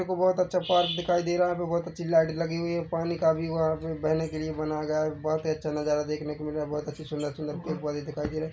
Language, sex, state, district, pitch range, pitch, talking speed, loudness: Hindi, male, Chhattisgarh, Bilaspur, 155-170 Hz, 160 Hz, 315 wpm, -28 LUFS